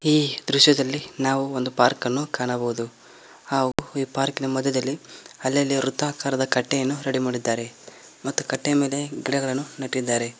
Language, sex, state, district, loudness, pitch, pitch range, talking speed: Kannada, male, Karnataka, Koppal, -23 LUFS, 135 Hz, 130-140 Hz, 120 wpm